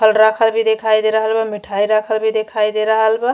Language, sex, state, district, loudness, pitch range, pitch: Bhojpuri, female, Uttar Pradesh, Ghazipur, -16 LUFS, 215-220 Hz, 220 Hz